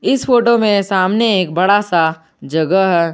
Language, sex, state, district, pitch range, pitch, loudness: Hindi, male, Jharkhand, Garhwa, 170-210 Hz, 190 Hz, -14 LUFS